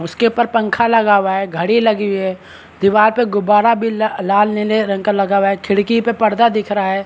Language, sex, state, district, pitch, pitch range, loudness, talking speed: Hindi, male, Maharashtra, Chandrapur, 210 Hz, 195-225 Hz, -15 LUFS, 235 wpm